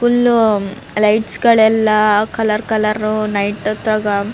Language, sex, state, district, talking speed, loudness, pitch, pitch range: Kannada, female, Karnataka, Raichur, 110 wpm, -15 LUFS, 215 Hz, 210-220 Hz